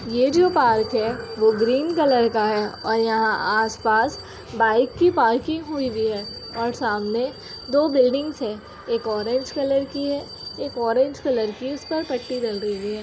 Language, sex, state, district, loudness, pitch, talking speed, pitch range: Hindi, female, Uttar Pradesh, Jyotiba Phule Nagar, -22 LUFS, 240 Hz, 165 wpm, 220-275 Hz